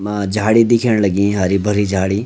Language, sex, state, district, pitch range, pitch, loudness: Garhwali, male, Uttarakhand, Uttarkashi, 100-110 Hz, 105 Hz, -15 LUFS